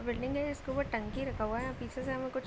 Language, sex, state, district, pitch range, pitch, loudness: Hindi, female, Uttar Pradesh, Deoria, 235-265 Hz, 260 Hz, -36 LUFS